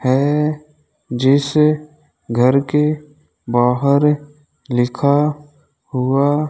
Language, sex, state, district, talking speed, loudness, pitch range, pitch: Hindi, male, Rajasthan, Bikaner, 75 wpm, -17 LUFS, 130-150 Hz, 145 Hz